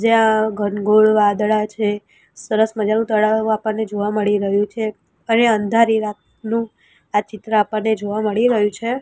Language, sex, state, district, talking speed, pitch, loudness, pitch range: Gujarati, female, Gujarat, Gandhinagar, 145 wpm, 215 Hz, -18 LUFS, 210-220 Hz